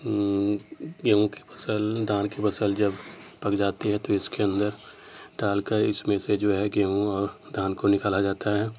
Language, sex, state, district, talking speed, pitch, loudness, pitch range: Hindi, male, Uttar Pradesh, Etah, 185 wpm, 100 Hz, -26 LUFS, 100-105 Hz